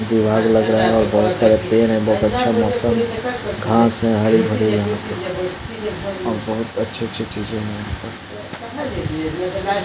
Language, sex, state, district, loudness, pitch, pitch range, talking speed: Hindi, male, Bihar, East Champaran, -19 LUFS, 110 Hz, 110-115 Hz, 145 wpm